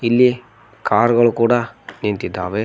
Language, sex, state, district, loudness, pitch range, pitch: Kannada, male, Karnataka, Koppal, -17 LUFS, 105-120 Hz, 115 Hz